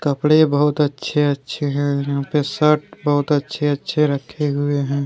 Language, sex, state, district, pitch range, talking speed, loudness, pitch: Hindi, male, Jharkhand, Deoghar, 140-150 Hz, 140 wpm, -19 LUFS, 145 Hz